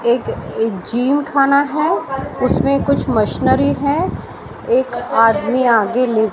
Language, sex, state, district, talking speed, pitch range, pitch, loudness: Hindi, female, Maharashtra, Mumbai Suburban, 125 wpm, 225-290 Hz, 255 Hz, -16 LUFS